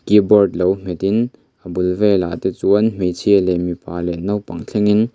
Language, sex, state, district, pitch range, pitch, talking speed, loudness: Mizo, male, Mizoram, Aizawl, 90-105 Hz, 95 Hz, 165 wpm, -17 LUFS